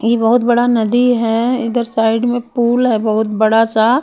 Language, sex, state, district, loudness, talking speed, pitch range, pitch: Hindi, female, Bihar, Patna, -14 LUFS, 195 wpm, 225-245 Hz, 235 Hz